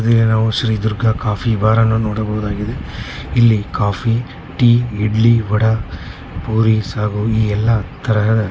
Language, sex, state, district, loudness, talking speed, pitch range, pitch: Kannada, male, Karnataka, Bellary, -16 LUFS, 125 wpm, 105-115 Hz, 110 Hz